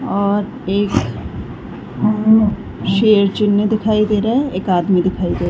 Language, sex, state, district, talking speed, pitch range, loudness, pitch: Hindi, female, Uttar Pradesh, Varanasi, 155 wpm, 195-215 Hz, -16 LUFS, 210 Hz